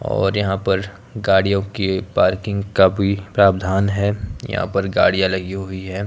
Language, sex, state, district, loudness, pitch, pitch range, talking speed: Hindi, male, Himachal Pradesh, Shimla, -19 LUFS, 95 Hz, 95-100 Hz, 160 wpm